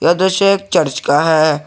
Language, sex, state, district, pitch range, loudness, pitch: Hindi, male, Jharkhand, Garhwa, 155-190 Hz, -13 LUFS, 170 Hz